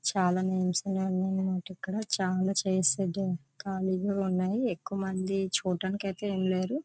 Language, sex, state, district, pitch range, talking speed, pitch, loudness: Telugu, female, Andhra Pradesh, Visakhapatnam, 185-195 Hz, 115 wpm, 190 Hz, -30 LUFS